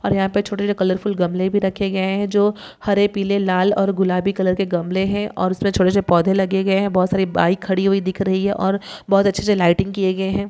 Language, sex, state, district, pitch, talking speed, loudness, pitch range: Hindi, female, Chhattisgarh, Bilaspur, 195 Hz, 265 wpm, -19 LUFS, 185-200 Hz